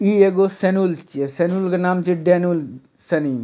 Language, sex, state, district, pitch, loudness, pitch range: Maithili, male, Bihar, Supaul, 180 Hz, -19 LUFS, 165-190 Hz